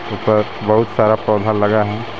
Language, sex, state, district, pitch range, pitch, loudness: Hindi, male, Jharkhand, Garhwa, 105-110 Hz, 110 Hz, -16 LUFS